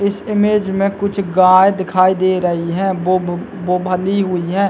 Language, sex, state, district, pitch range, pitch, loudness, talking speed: Hindi, male, Chhattisgarh, Bilaspur, 180-200 Hz, 185 Hz, -15 LUFS, 180 wpm